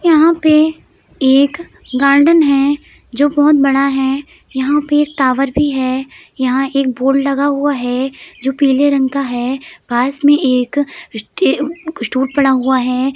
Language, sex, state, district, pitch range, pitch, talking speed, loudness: Hindi, female, Uttar Pradesh, Jalaun, 265-290 Hz, 275 Hz, 155 wpm, -14 LUFS